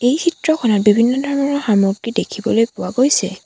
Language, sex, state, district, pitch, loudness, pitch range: Assamese, female, Assam, Sonitpur, 235 Hz, -16 LUFS, 210-280 Hz